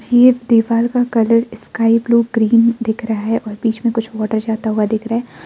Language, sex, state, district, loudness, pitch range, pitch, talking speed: Hindi, female, Arunachal Pradesh, Lower Dibang Valley, -16 LUFS, 220-230 Hz, 230 Hz, 210 wpm